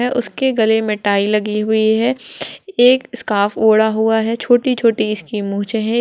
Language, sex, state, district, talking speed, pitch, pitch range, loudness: Hindi, female, Bihar, Gaya, 180 wpm, 220 Hz, 215-245 Hz, -16 LUFS